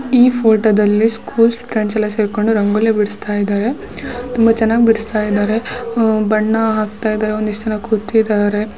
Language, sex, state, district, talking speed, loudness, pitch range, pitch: Kannada, female, Karnataka, Shimoga, 130 wpm, -15 LUFS, 210-225 Hz, 220 Hz